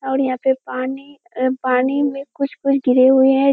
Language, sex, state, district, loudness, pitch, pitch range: Hindi, female, Bihar, Kishanganj, -18 LUFS, 265 Hz, 260-275 Hz